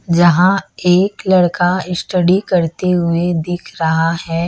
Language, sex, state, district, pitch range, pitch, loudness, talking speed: Hindi, female, Chhattisgarh, Raipur, 170-185 Hz, 175 Hz, -15 LUFS, 120 wpm